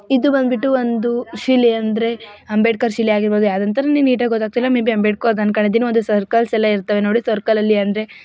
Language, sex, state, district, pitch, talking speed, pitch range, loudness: Kannada, female, Karnataka, Dakshina Kannada, 230 Hz, 155 wpm, 210-240 Hz, -17 LUFS